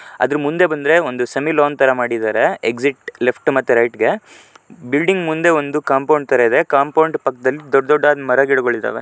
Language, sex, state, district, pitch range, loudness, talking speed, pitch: Kannada, male, Karnataka, Shimoga, 130-155 Hz, -16 LUFS, 165 wpm, 140 Hz